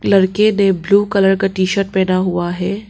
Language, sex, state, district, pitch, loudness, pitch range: Hindi, female, Arunachal Pradesh, Papum Pare, 195 Hz, -15 LUFS, 185-200 Hz